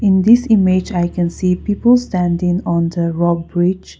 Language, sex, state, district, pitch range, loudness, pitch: English, female, Nagaland, Kohima, 175-200 Hz, -15 LUFS, 180 Hz